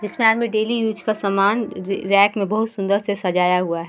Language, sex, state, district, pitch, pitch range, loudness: Hindi, female, Bihar, Vaishali, 200 Hz, 195-220 Hz, -19 LUFS